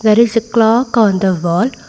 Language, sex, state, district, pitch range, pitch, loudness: English, female, Karnataka, Bangalore, 195-235 Hz, 225 Hz, -13 LUFS